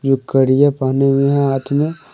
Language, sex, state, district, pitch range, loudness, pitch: Hindi, male, Jharkhand, Deoghar, 135-140 Hz, -15 LUFS, 135 Hz